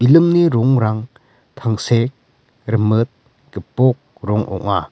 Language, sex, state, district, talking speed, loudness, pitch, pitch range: Garo, male, Meghalaya, West Garo Hills, 85 wpm, -17 LUFS, 120 Hz, 110-130 Hz